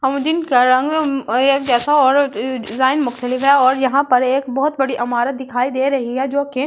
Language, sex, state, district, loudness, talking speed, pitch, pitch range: Hindi, female, Delhi, New Delhi, -16 LUFS, 170 wpm, 265 Hz, 250-275 Hz